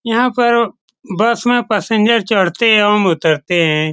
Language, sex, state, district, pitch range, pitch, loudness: Hindi, male, Bihar, Saran, 190-235 Hz, 220 Hz, -14 LUFS